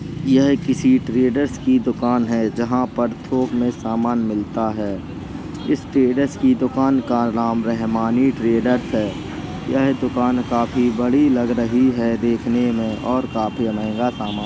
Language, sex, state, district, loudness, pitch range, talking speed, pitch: Hindi, male, Uttar Pradesh, Jalaun, -19 LUFS, 115-130 Hz, 150 wpm, 120 Hz